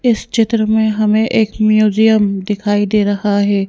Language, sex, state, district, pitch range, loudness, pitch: Hindi, female, Madhya Pradesh, Bhopal, 205-220 Hz, -14 LUFS, 215 Hz